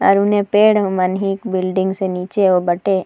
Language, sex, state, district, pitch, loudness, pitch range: Sadri, female, Chhattisgarh, Jashpur, 190 Hz, -16 LUFS, 185-200 Hz